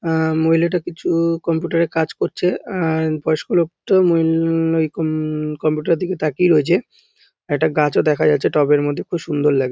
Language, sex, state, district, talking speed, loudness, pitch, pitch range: Bengali, male, West Bengal, North 24 Parganas, 160 wpm, -18 LUFS, 165 Hz, 155-175 Hz